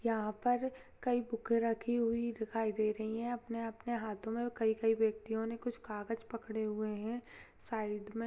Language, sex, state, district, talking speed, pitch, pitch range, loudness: Hindi, female, Rajasthan, Churu, 165 wpm, 225 Hz, 220-235 Hz, -37 LUFS